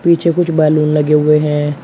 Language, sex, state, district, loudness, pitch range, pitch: Hindi, male, Uttar Pradesh, Shamli, -13 LUFS, 150-170 Hz, 150 Hz